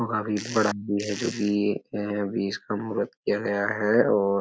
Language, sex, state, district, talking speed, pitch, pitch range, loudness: Hindi, male, Uttar Pradesh, Etah, 215 wpm, 105 Hz, 100-105 Hz, -26 LUFS